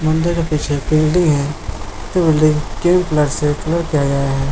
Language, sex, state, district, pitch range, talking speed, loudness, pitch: Hindi, male, Bihar, Lakhisarai, 140-160 Hz, 170 wpm, -16 LUFS, 150 Hz